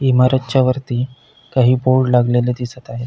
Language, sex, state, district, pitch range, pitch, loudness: Marathi, male, Maharashtra, Pune, 125-130 Hz, 125 Hz, -16 LUFS